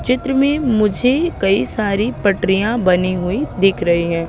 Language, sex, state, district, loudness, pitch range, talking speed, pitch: Hindi, female, Madhya Pradesh, Katni, -16 LUFS, 185-250 Hz, 155 wpm, 200 Hz